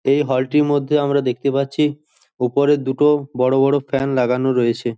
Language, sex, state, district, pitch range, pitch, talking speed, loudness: Bengali, male, West Bengal, Jhargram, 130-145 Hz, 135 Hz, 170 wpm, -18 LUFS